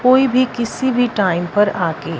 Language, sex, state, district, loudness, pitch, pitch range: Hindi, female, Punjab, Fazilka, -17 LUFS, 225 Hz, 175-255 Hz